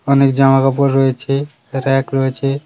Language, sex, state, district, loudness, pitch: Bengali, male, West Bengal, Cooch Behar, -15 LUFS, 135 Hz